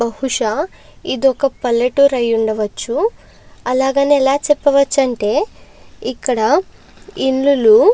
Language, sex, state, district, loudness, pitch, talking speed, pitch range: Telugu, female, Andhra Pradesh, Chittoor, -16 LUFS, 270 Hz, 85 wpm, 245-285 Hz